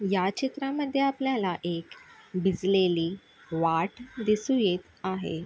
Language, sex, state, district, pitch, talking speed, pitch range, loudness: Marathi, female, Maharashtra, Sindhudurg, 190 Hz, 100 wpm, 175-260 Hz, -28 LUFS